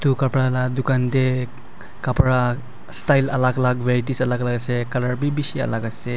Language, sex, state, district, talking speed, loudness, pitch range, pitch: Nagamese, male, Nagaland, Dimapur, 175 wpm, -21 LUFS, 125-135 Hz, 125 Hz